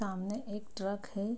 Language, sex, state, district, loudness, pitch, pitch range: Hindi, female, Bihar, Araria, -39 LUFS, 205 Hz, 195-210 Hz